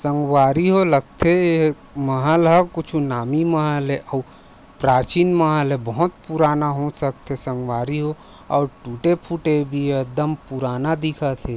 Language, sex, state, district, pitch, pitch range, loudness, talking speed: Chhattisgarhi, male, Chhattisgarh, Raigarh, 145 Hz, 135-160 Hz, -20 LUFS, 145 wpm